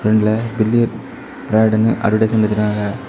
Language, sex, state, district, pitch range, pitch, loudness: Tamil, male, Tamil Nadu, Kanyakumari, 105-110 Hz, 110 Hz, -16 LUFS